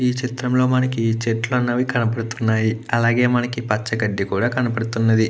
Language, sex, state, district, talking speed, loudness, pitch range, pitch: Telugu, male, Andhra Pradesh, Krishna, 145 wpm, -20 LUFS, 115-125 Hz, 115 Hz